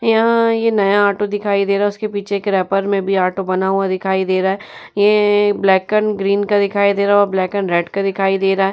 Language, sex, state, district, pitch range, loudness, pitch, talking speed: Hindi, female, Uttar Pradesh, Jyotiba Phule Nagar, 195-205 Hz, -16 LUFS, 200 Hz, 270 wpm